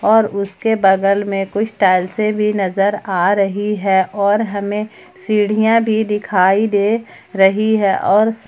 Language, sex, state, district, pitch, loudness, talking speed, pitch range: Hindi, female, Jharkhand, Palamu, 205 Hz, -16 LUFS, 150 wpm, 195-215 Hz